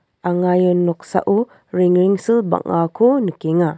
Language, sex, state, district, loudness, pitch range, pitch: Garo, female, Meghalaya, West Garo Hills, -17 LUFS, 175-205 Hz, 180 Hz